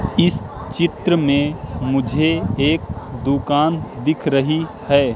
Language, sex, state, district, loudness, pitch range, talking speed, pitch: Hindi, male, Madhya Pradesh, Katni, -19 LUFS, 135-155 Hz, 105 wpm, 145 Hz